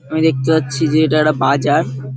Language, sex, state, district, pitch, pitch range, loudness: Bengali, male, West Bengal, Paschim Medinipur, 155 Hz, 135-155 Hz, -15 LUFS